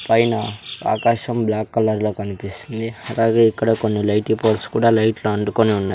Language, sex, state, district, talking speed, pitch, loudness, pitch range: Telugu, male, Andhra Pradesh, Sri Satya Sai, 150 wpm, 110 Hz, -19 LUFS, 105-115 Hz